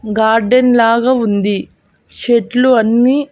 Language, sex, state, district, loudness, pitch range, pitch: Telugu, female, Andhra Pradesh, Annamaya, -12 LUFS, 220-250 Hz, 235 Hz